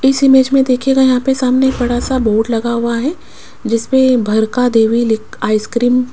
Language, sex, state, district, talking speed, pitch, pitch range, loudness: Hindi, female, Rajasthan, Jaipur, 205 wpm, 250 Hz, 230-265 Hz, -13 LUFS